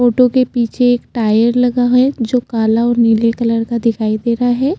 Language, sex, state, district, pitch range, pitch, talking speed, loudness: Hindi, female, Chhattisgarh, Jashpur, 230-245 Hz, 235 Hz, 215 wpm, -14 LUFS